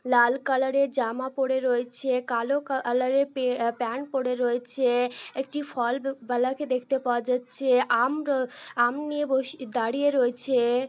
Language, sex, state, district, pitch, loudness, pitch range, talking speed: Bengali, female, West Bengal, North 24 Parganas, 255 Hz, -26 LUFS, 245-270 Hz, 145 wpm